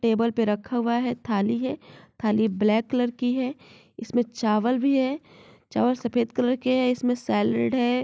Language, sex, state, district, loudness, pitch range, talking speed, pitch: Hindi, female, Bihar, Saran, -24 LUFS, 225-250 Hz, 180 wpm, 245 Hz